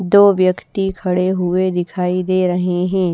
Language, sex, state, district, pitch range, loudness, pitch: Hindi, female, Bihar, Patna, 180-185 Hz, -16 LUFS, 185 Hz